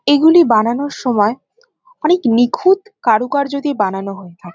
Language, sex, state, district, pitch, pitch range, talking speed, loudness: Bengali, female, West Bengal, Kolkata, 280 Hz, 215-345 Hz, 130 wpm, -15 LUFS